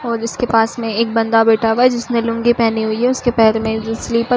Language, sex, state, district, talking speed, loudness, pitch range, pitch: Hindi, female, Uttar Pradesh, Varanasi, 275 wpm, -16 LUFS, 225-240 Hz, 230 Hz